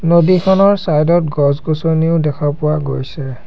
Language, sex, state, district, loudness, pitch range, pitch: Assamese, male, Assam, Sonitpur, -14 LUFS, 145-170 Hz, 155 Hz